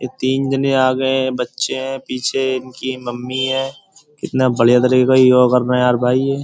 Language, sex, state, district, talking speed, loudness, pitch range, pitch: Hindi, male, Uttar Pradesh, Jyotiba Phule Nagar, 215 wpm, -16 LUFS, 125-135 Hz, 130 Hz